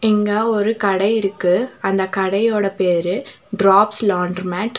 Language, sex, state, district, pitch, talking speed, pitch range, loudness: Tamil, female, Tamil Nadu, Nilgiris, 205 Hz, 125 wpm, 190-220 Hz, -18 LUFS